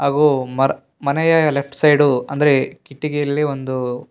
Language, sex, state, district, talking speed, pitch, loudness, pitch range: Kannada, male, Karnataka, Bellary, 130 wpm, 140 Hz, -17 LUFS, 135-150 Hz